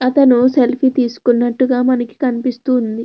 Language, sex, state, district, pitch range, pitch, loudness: Telugu, female, Andhra Pradesh, Krishna, 240-255 Hz, 250 Hz, -14 LUFS